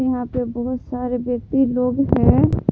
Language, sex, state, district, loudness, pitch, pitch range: Hindi, female, Jharkhand, Palamu, -19 LUFS, 250 Hz, 245-255 Hz